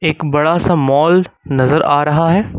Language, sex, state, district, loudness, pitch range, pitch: Hindi, male, Uttar Pradesh, Lucknow, -13 LUFS, 145-170 Hz, 155 Hz